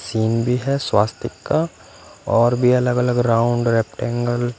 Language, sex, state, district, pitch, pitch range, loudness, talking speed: Hindi, male, Punjab, Fazilka, 120 Hz, 115-125 Hz, -19 LUFS, 155 wpm